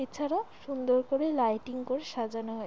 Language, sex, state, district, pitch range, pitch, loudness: Bengali, female, West Bengal, Jalpaiguri, 235-280 Hz, 255 Hz, -31 LUFS